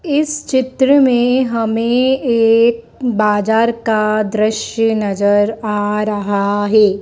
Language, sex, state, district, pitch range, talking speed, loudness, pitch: Hindi, female, Madhya Pradesh, Dhar, 210-245 Hz, 105 wpm, -15 LUFS, 225 Hz